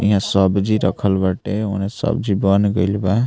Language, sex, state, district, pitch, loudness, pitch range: Bhojpuri, male, Bihar, Muzaffarpur, 100 Hz, -18 LUFS, 95-105 Hz